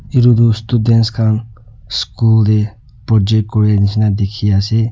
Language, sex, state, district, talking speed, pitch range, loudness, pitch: Nagamese, male, Nagaland, Dimapur, 145 wpm, 105-115 Hz, -14 LUFS, 110 Hz